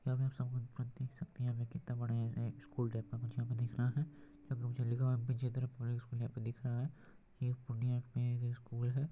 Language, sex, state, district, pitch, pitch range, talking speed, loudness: Hindi, male, Bihar, Purnia, 125 Hz, 120-130 Hz, 235 wpm, -40 LUFS